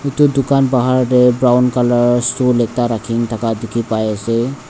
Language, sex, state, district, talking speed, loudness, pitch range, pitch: Nagamese, male, Nagaland, Dimapur, 140 wpm, -15 LUFS, 115-130 Hz, 125 Hz